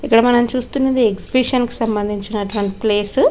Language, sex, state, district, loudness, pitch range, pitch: Telugu, female, Telangana, Karimnagar, -17 LUFS, 210-250 Hz, 230 Hz